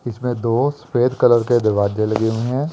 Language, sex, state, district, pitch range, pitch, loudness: Hindi, female, Chandigarh, Chandigarh, 110-125 Hz, 120 Hz, -18 LUFS